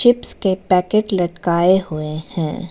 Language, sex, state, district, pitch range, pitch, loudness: Hindi, female, Arunachal Pradesh, Lower Dibang Valley, 170-190 Hz, 185 Hz, -18 LUFS